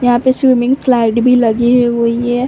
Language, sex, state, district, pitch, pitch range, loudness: Hindi, female, Uttar Pradesh, Varanasi, 245 Hz, 235-250 Hz, -12 LUFS